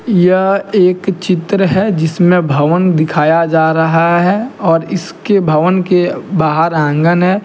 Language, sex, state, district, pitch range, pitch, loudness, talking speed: Hindi, male, Jharkhand, Deoghar, 160-190 Hz, 180 Hz, -12 LUFS, 135 wpm